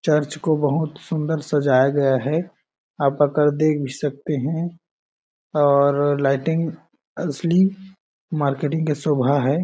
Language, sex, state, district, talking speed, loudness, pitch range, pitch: Hindi, male, Chhattisgarh, Balrampur, 130 wpm, -21 LUFS, 140-160 Hz, 150 Hz